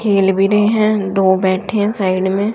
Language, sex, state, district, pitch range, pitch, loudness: Hindi, female, Haryana, Charkhi Dadri, 190-210 Hz, 195 Hz, -15 LUFS